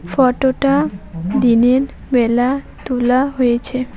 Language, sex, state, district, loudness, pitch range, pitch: Bengali, female, West Bengal, Alipurduar, -16 LUFS, 240-265 Hz, 250 Hz